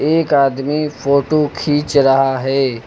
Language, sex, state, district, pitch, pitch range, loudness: Hindi, male, Uttar Pradesh, Lucknow, 140 Hz, 135-150 Hz, -15 LUFS